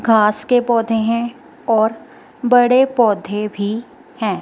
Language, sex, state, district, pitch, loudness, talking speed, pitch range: Hindi, female, Himachal Pradesh, Shimla, 230 Hz, -16 LUFS, 120 wpm, 215-245 Hz